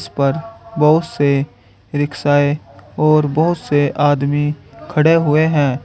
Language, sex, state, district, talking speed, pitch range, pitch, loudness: Hindi, male, Uttar Pradesh, Saharanpur, 115 wpm, 140-155 Hz, 145 Hz, -16 LUFS